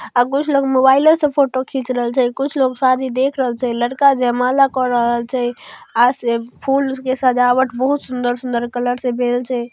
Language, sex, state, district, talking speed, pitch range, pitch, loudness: Maithili, female, Bihar, Darbhanga, 185 wpm, 245-265 Hz, 255 Hz, -17 LUFS